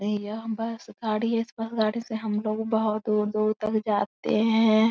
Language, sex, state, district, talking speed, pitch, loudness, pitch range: Hindi, female, Uttar Pradesh, Etah, 185 wpm, 220 Hz, -26 LUFS, 215-225 Hz